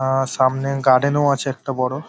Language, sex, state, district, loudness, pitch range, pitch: Bengali, male, West Bengal, Paschim Medinipur, -19 LUFS, 130-140 Hz, 135 Hz